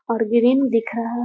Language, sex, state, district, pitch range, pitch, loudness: Hindi, female, Bihar, Muzaffarpur, 230-240 Hz, 235 Hz, -19 LUFS